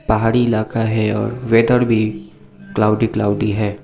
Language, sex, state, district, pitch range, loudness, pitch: Hindi, male, Sikkim, Gangtok, 105-115 Hz, -17 LUFS, 110 Hz